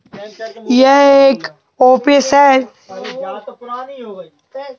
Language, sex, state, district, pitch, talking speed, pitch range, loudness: Hindi, male, Madhya Pradesh, Bhopal, 255 Hz, 50 wpm, 225-275 Hz, -10 LUFS